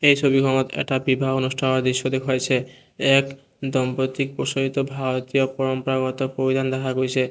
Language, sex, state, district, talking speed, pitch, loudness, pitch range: Assamese, male, Assam, Kamrup Metropolitan, 125 wpm, 130 Hz, -22 LUFS, 130-135 Hz